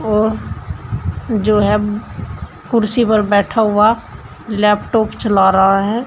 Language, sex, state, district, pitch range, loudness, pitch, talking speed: Hindi, female, Uttar Pradesh, Shamli, 195-220 Hz, -15 LUFS, 210 Hz, 110 wpm